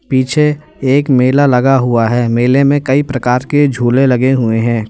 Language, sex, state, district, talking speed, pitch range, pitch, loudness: Hindi, male, Uttar Pradesh, Lalitpur, 185 wpm, 120-140 Hz, 130 Hz, -12 LUFS